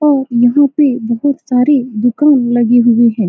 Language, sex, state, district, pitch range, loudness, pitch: Hindi, female, Bihar, Saran, 235-285 Hz, -12 LUFS, 245 Hz